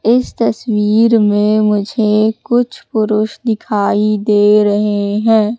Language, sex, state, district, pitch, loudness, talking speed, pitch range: Hindi, female, Madhya Pradesh, Katni, 215 Hz, -13 LUFS, 105 wpm, 210-225 Hz